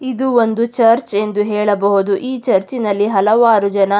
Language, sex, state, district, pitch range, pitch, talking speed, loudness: Kannada, female, Karnataka, Mysore, 200-235 Hz, 210 Hz, 135 wpm, -14 LUFS